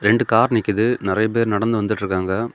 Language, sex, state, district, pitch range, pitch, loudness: Tamil, male, Tamil Nadu, Kanyakumari, 105-115 Hz, 110 Hz, -19 LUFS